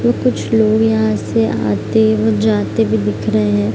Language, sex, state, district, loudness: Hindi, female, Bihar, Araria, -15 LUFS